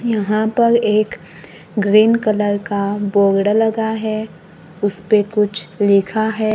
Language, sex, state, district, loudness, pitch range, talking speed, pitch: Hindi, female, Maharashtra, Gondia, -16 LUFS, 200-220 Hz, 120 wpm, 210 Hz